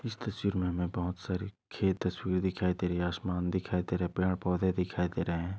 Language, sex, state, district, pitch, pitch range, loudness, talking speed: Hindi, male, Maharashtra, Aurangabad, 90 Hz, 90-95 Hz, -32 LUFS, 245 wpm